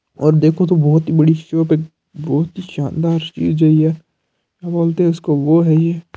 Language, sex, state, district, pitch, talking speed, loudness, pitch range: Hindi, male, Rajasthan, Nagaur, 160 Hz, 205 wpm, -15 LUFS, 155-165 Hz